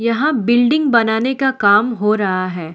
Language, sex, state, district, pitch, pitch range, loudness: Hindi, female, Delhi, New Delhi, 230 Hz, 205-255 Hz, -15 LUFS